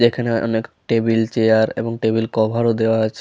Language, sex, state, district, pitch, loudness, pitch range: Bengali, male, West Bengal, Malda, 115 Hz, -18 LUFS, 110-115 Hz